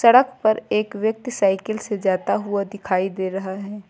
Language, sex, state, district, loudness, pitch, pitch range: Hindi, female, Uttar Pradesh, Lucknow, -22 LUFS, 205 Hz, 195-220 Hz